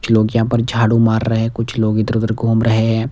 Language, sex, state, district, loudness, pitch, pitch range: Hindi, male, Himachal Pradesh, Shimla, -16 LUFS, 115 Hz, 110-115 Hz